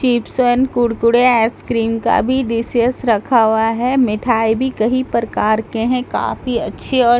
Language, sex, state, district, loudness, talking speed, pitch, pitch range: Hindi, female, Delhi, New Delhi, -16 LUFS, 185 wpm, 235 Hz, 225-250 Hz